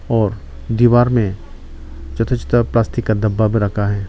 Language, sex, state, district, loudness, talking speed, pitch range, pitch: Hindi, male, Arunachal Pradesh, Lower Dibang Valley, -17 LUFS, 160 wpm, 95-115 Hz, 110 Hz